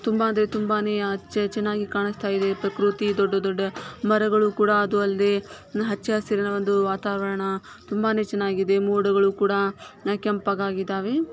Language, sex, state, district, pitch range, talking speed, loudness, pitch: Kannada, female, Karnataka, Shimoga, 195-210 Hz, 115 wpm, -24 LUFS, 205 Hz